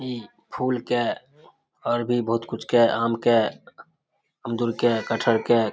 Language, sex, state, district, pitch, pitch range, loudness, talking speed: Maithili, male, Bihar, Samastipur, 115 Hz, 115-120 Hz, -23 LUFS, 155 wpm